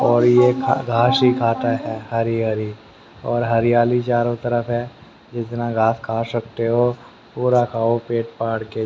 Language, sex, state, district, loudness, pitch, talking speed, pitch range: Hindi, male, Haryana, Rohtak, -19 LUFS, 120 Hz, 155 wpm, 115-120 Hz